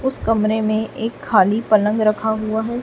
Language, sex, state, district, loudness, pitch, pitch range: Hindi, female, Chhattisgarh, Raipur, -18 LUFS, 220 Hz, 215-225 Hz